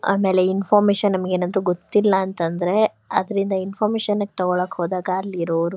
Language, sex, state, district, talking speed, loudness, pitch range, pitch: Kannada, female, Karnataka, Shimoga, 105 wpm, -21 LUFS, 180-205 Hz, 190 Hz